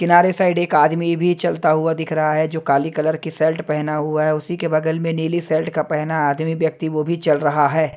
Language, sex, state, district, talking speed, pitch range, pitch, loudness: Hindi, male, Himachal Pradesh, Shimla, 250 wpm, 155-165 Hz, 160 Hz, -19 LUFS